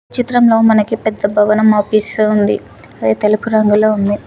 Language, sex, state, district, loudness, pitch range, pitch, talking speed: Telugu, female, Telangana, Mahabubabad, -13 LUFS, 205-220 Hz, 215 Hz, 140 wpm